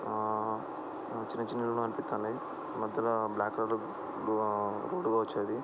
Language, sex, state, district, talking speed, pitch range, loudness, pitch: Telugu, male, Andhra Pradesh, Srikakulam, 105 wpm, 110-115 Hz, -34 LUFS, 110 Hz